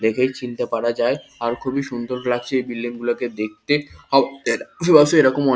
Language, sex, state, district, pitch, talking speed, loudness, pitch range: Bengali, male, West Bengal, Kolkata, 125 Hz, 150 wpm, -20 LUFS, 120-130 Hz